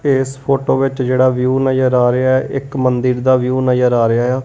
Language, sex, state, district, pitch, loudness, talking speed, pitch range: Punjabi, male, Punjab, Kapurthala, 130 Hz, -15 LUFS, 230 wpm, 125-135 Hz